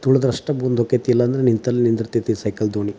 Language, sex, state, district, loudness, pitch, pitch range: Kannada, male, Karnataka, Dharwad, -19 LUFS, 120 Hz, 115-125 Hz